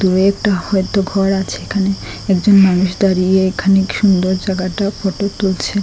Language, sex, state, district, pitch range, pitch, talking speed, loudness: Bengali, female, Assam, Hailakandi, 185-200 Hz, 195 Hz, 145 wpm, -15 LUFS